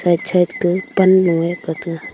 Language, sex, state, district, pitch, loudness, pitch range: Wancho, female, Arunachal Pradesh, Longding, 175 Hz, -16 LUFS, 170-185 Hz